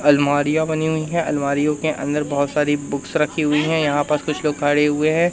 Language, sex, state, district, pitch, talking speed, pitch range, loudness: Hindi, male, Madhya Pradesh, Umaria, 150 Hz, 225 wpm, 145-155 Hz, -19 LUFS